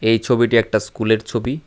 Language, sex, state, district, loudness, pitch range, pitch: Bengali, male, Tripura, West Tripura, -18 LUFS, 110-120 Hz, 115 Hz